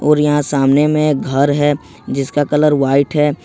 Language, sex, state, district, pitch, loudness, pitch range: Hindi, male, Jharkhand, Ranchi, 145 Hz, -14 LUFS, 140-150 Hz